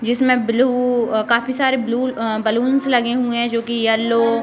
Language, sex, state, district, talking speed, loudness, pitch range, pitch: Hindi, female, Uttar Pradesh, Deoria, 175 wpm, -18 LUFS, 230-250 Hz, 235 Hz